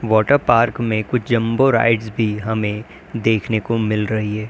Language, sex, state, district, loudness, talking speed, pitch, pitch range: Hindi, male, Uttar Pradesh, Lalitpur, -18 LUFS, 175 wpm, 110 Hz, 110-115 Hz